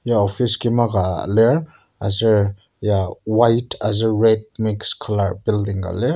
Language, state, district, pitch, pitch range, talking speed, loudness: Ao, Nagaland, Kohima, 110 Hz, 100-115 Hz, 145 wpm, -18 LUFS